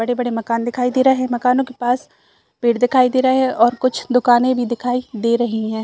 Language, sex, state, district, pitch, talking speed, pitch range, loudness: Hindi, female, Chhattisgarh, Raigarh, 245 Hz, 225 wpm, 235-255 Hz, -17 LUFS